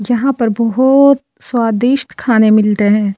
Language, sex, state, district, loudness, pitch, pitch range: Hindi, female, Delhi, New Delhi, -12 LUFS, 230 Hz, 215-265 Hz